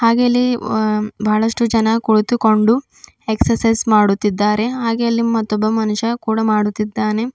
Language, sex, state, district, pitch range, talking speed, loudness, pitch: Kannada, female, Karnataka, Bidar, 215-230 Hz, 115 wpm, -16 LUFS, 220 Hz